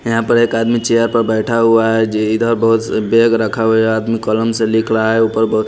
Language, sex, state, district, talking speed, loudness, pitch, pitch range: Hindi, male, Haryana, Rohtak, 245 wpm, -14 LUFS, 115 Hz, 110-115 Hz